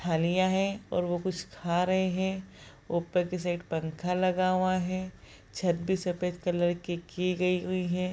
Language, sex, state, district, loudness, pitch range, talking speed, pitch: Hindi, female, Bihar, Supaul, -30 LUFS, 175-185 Hz, 170 wpm, 180 Hz